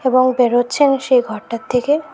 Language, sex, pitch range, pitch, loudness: Bengali, female, 245-270 Hz, 255 Hz, -16 LUFS